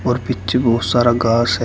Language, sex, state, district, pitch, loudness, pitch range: Hindi, male, Uttar Pradesh, Shamli, 120 Hz, -16 LUFS, 115-125 Hz